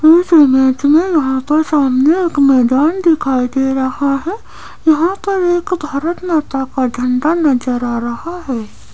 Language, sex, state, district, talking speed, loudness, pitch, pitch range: Hindi, female, Rajasthan, Jaipur, 145 wpm, -14 LUFS, 295 Hz, 260-335 Hz